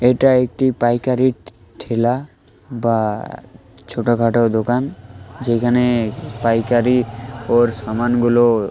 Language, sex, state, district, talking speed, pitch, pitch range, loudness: Bengali, male, Jharkhand, Jamtara, 85 wpm, 120 Hz, 115-125 Hz, -17 LUFS